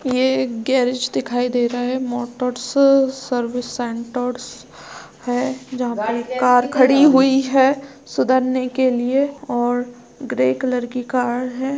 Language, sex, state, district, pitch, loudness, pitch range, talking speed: Hindi, female, Uttar Pradesh, Jalaun, 250 Hz, -19 LUFS, 245-265 Hz, 130 wpm